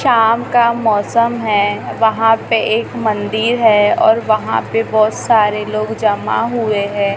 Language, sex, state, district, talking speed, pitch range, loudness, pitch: Hindi, female, Maharashtra, Gondia, 150 wpm, 210-230 Hz, -14 LUFS, 220 Hz